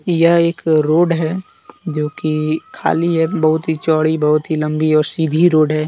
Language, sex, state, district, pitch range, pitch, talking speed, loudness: Hindi, male, Jharkhand, Deoghar, 155-165 Hz, 160 Hz, 185 wpm, -16 LUFS